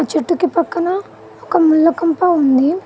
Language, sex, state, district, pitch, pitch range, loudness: Telugu, female, Telangana, Mahabubabad, 340 Hz, 315-355 Hz, -15 LUFS